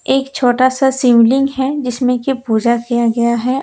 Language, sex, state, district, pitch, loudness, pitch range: Hindi, female, Jharkhand, Deoghar, 250 Hz, -14 LUFS, 235-265 Hz